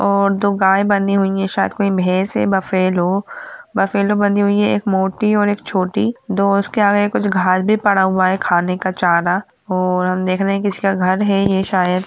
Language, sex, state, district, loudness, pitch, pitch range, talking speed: Hindi, female, Bihar, Purnia, -16 LUFS, 195 Hz, 185-205 Hz, 215 wpm